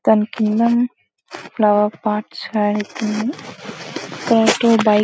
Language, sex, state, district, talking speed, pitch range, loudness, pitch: Telugu, female, Telangana, Karimnagar, 70 wpm, 210-230 Hz, -18 LUFS, 215 Hz